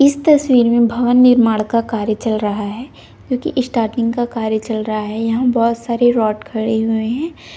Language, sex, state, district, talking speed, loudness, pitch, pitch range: Hindi, female, Chhattisgarh, Sarguja, 190 wpm, -16 LUFS, 230 Hz, 220-245 Hz